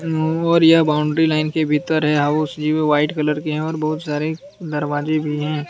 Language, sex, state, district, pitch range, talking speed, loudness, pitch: Hindi, male, Jharkhand, Deoghar, 150-160 Hz, 210 wpm, -18 LUFS, 155 Hz